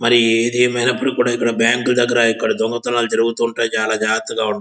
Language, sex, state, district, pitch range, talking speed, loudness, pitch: Telugu, male, Andhra Pradesh, Visakhapatnam, 115-120 Hz, 145 wpm, -17 LUFS, 115 Hz